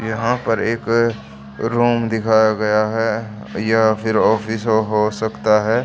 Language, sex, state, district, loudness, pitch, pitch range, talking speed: Hindi, male, Haryana, Charkhi Dadri, -18 LUFS, 110 Hz, 110-115 Hz, 135 wpm